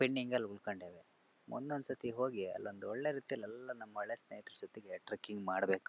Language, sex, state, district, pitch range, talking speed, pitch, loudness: Kannada, male, Karnataka, Shimoga, 100-130 Hz, 155 wpm, 125 Hz, -42 LUFS